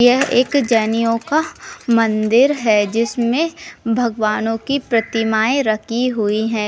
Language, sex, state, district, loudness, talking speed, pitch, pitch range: Hindi, female, Uttar Pradesh, Budaun, -17 LUFS, 115 wpm, 230 Hz, 220-255 Hz